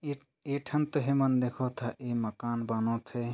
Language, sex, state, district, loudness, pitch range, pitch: Chhattisgarhi, male, Chhattisgarh, Jashpur, -32 LUFS, 120-140 Hz, 125 Hz